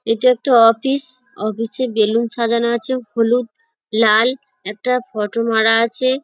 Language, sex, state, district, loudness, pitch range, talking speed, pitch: Bengali, female, West Bengal, Dakshin Dinajpur, -17 LUFS, 225-255 Hz, 135 wpm, 235 Hz